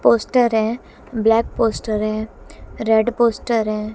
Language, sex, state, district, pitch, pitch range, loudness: Hindi, female, Haryana, Jhajjar, 220 Hz, 215-230 Hz, -19 LUFS